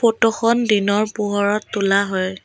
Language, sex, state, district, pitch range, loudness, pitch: Assamese, female, Assam, Kamrup Metropolitan, 200-225 Hz, -18 LUFS, 210 Hz